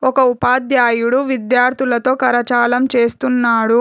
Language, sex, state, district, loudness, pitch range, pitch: Telugu, female, Telangana, Hyderabad, -15 LUFS, 240-260 Hz, 250 Hz